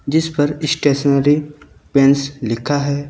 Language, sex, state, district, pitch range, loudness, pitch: Hindi, male, Uttar Pradesh, Lucknow, 140-145 Hz, -16 LUFS, 145 Hz